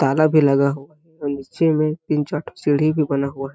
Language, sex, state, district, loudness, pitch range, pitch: Hindi, male, Chhattisgarh, Balrampur, -20 LUFS, 140-155 Hz, 150 Hz